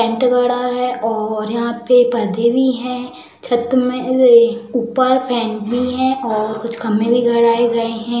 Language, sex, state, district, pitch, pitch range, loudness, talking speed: Hindi, female, Uttar Pradesh, Budaun, 240 Hz, 230-250 Hz, -16 LUFS, 145 wpm